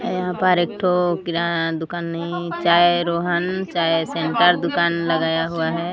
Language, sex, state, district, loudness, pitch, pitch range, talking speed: Hindi, female, Odisha, Sambalpur, -20 LUFS, 170 Hz, 170-175 Hz, 150 wpm